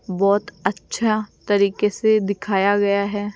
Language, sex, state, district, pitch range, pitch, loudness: Hindi, female, Rajasthan, Jaipur, 200-210 Hz, 200 Hz, -20 LUFS